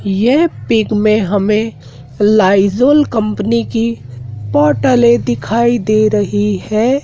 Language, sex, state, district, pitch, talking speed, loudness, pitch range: Hindi, male, Madhya Pradesh, Dhar, 215 Hz, 100 wpm, -13 LUFS, 195-230 Hz